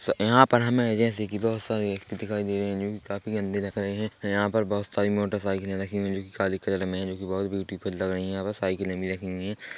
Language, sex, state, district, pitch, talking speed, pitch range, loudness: Hindi, male, Chhattisgarh, Korba, 100 Hz, 270 wpm, 95-105 Hz, -27 LUFS